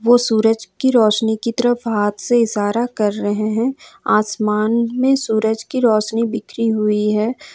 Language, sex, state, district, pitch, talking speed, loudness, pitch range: Hindi, female, Jharkhand, Ranchi, 225 Hz, 160 wpm, -17 LUFS, 215-240 Hz